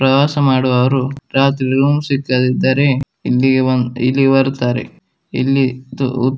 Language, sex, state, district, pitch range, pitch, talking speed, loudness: Kannada, male, Karnataka, Dakshina Kannada, 130-135 Hz, 130 Hz, 115 wpm, -15 LUFS